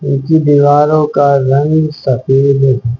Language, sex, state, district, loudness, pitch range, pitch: Hindi, female, Haryana, Charkhi Dadri, -11 LUFS, 135-150 Hz, 140 Hz